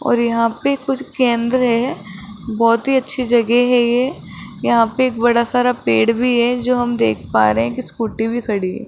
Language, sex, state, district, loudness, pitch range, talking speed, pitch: Hindi, female, Rajasthan, Jaipur, -16 LUFS, 225-250 Hz, 210 wpm, 235 Hz